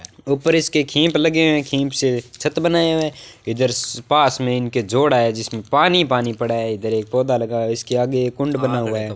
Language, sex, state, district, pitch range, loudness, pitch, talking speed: Hindi, male, Rajasthan, Bikaner, 115-150 Hz, -19 LUFS, 130 Hz, 210 wpm